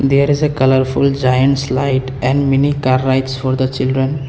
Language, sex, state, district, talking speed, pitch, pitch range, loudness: English, male, Assam, Kamrup Metropolitan, 180 wpm, 135 Hz, 130-140 Hz, -15 LUFS